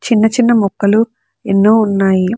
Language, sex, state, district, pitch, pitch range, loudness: Telugu, female, Andhra Pradesh, Chittoor, 215 Hz, 200-225 Hz, -12 LUFS